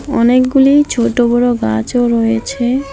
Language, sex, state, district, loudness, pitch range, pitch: Bengali, female, West Bengal, Alipurduar, -13 LUFS, 235-255 Hz, 245 Hz